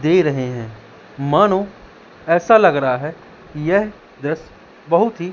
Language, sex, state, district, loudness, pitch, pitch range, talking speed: Hindi, male, Madhya Pradesh, Katni, -17 LUFS, 165 Hz, 145-195 Hz, 145 wpm